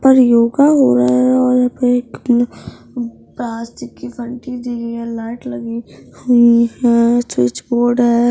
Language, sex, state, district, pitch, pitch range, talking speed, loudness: Hindi, female, Bihar, Madhepura, 235 Hz, 230-245 Hz, 160 wpm, -15 LUFS